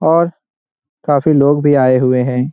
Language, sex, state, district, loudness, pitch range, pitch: Hindi, male, Bihar, Jamui, -13 LUFS, 130-155 Hz, 145 Hz